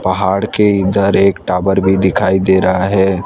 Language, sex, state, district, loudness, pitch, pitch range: Hindi, male, Gujarat, Valsad, -13 LUFS, 95 Hz, 95-100 Hz